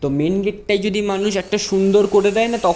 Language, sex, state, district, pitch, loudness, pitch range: Bengali, male, West Bengal, Jalpaiguri, 205 Hz, -18 LUFS, 195-210 Hz